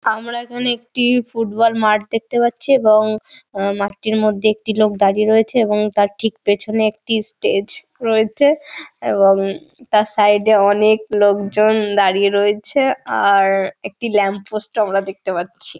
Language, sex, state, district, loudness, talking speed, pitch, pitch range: Bengali, female, West Bengal, Dakshin Dinajpur, -16 LUFS, 140 wpm, 215 Hz, 205-230 Hz